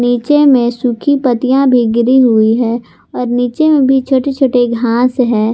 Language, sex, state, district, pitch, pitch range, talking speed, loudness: Hindi, female, Jharkhand, Garhwa, 245 Hz, 235-265 Hz, 175 wpm, -11 LUFS